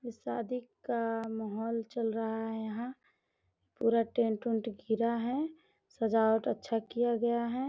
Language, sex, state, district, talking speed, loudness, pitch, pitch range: Hindi, female, Bihar, Gopalganj, 150 wpm, -33 LUFS, 230 Hz, 225-240 Hz